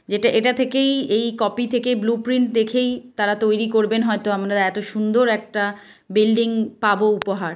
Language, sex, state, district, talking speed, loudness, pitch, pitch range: Bengali, female, West Bengal, Kolkata, 150 wpm, -20 LUFS, 220 Hz, 210-240 Hz